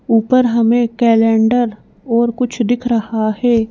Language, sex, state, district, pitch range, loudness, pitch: Hindi, female, Madhya Pradesh, Bhopal, 225-240 Hz, -14 LUFS, 235 Hz